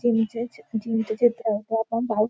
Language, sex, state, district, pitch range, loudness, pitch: Marathi, female, Maharashtra, Nagpur, 220-235 Hz, -25 LUFS, 225 Hz